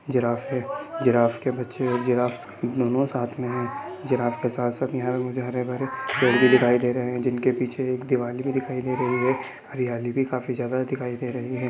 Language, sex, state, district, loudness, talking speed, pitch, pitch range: Hindi, male, Bihar, Sitamarhi, -25 LUFS, 210 wpm, 125 Hz, 125-130 Hz